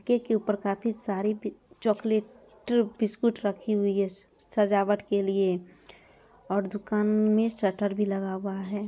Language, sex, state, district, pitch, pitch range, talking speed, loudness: Hindi, female, Bihar, Araria, 210 Hz, 200-220 Hz, 155 wpm, -28 LUFS